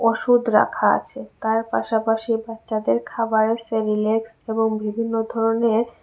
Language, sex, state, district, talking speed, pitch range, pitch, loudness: Bengali, female, Tripura, West Tripura, 110 wpm, 220-230 Hz, 225 Hz, -21 LUFS